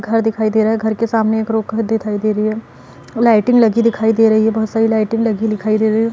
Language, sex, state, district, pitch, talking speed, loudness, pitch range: Hindi, female, Uttar Pradesh, Varanasi, 220 Hz, 285 wpm, -15 LUFS, 220-225 Hz